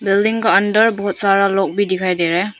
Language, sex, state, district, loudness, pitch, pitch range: Hindi, female, Arunachal Pradesh, Papum Pare, -15 LUFS, 200 Hz, 190-210 Hz